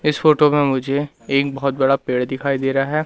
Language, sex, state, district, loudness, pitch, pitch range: Hindi, male, Madhya Pradesh, Katni, -18 LUFS, 140 Hz, 135-145 Hz